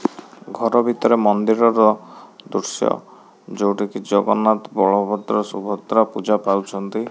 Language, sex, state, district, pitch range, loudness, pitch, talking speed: Odia, male, Odisha, Khordha, 100-110 Hz, -19 LUFS, 105 Hz, 100 wpm